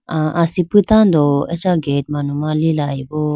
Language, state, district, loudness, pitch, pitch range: Idu Mishmi, Arunachal Pradesh, Lower Dibang Valley, -16 LUFS, 155 Hz, 145-170 Hz